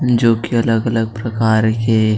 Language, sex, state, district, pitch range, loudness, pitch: Chhattisgarhi, male, Chhattisgarh, Sarguja, 110-115 Hz, -16 LUFS, 115 Hz